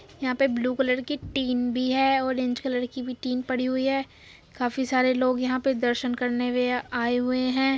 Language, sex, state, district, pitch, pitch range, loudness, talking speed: Hindi, female, Uttar Pradesh, Muzaffarnagar, 255 Hz, 250-260 Hz, -25 LUFS, 210 wpm